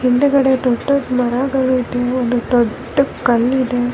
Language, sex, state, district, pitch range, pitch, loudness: Kannada, female, Karnataka, Bellary, 245-265 Hz, 250 Hz, -16 LUFS